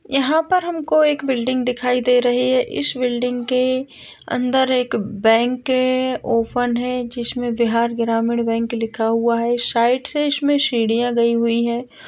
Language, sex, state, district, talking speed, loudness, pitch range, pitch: Hindi, female, Bihar, Lakhisarai, 155 wpm, -19 LUFS, 235-255 Hz, 245 Hz